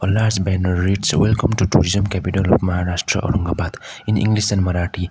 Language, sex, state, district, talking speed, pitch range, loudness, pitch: English, male, Sikkim, Gangtok, 165 wpm, 90-105 Hz, -18 LUFS, 95 Hz